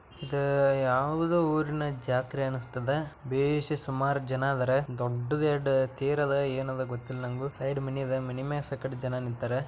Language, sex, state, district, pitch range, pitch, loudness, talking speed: Kannada, male, Karnataka, Bijapur, 130-140 Hz, 135 Hz, -30 LUFS, 155 wpm